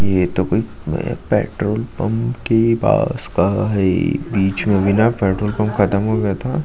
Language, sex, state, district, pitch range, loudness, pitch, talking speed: Hindi, male, Chhattisgarh, Sukma, 100-115 Hz, -18 LUFS, 105 Hz, 160 wpm